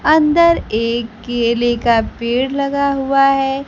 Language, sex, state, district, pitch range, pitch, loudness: Hindi, female, Bihar, Kaimur, 235-280 Hz, 270 Hz, -15 LUFS